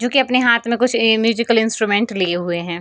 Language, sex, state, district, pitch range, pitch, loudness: Hindi, female, Bihar, East Champaran, 205-235 Hz, 225 Hz, -16 LUFS